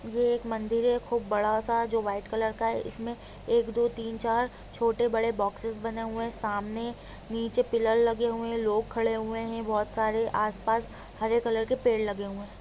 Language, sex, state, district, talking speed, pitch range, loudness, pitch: Hindi, female, Jharkhand, Jamtara, 205 wpm, 220-230 Hz, -29 LUFS, 225 Hz